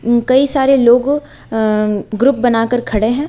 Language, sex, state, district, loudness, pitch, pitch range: Hindi, female, Uttar Pradesh, Lucknow, -14 LUFS, 245 Hz, 220-270 Hz